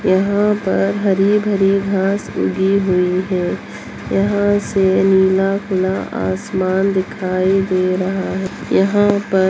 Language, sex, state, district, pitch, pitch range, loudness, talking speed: Hindi, female, Bihar, Bhagalpur, 190 Hz, 185-200 Hz, -16 LUFS, 120 wpm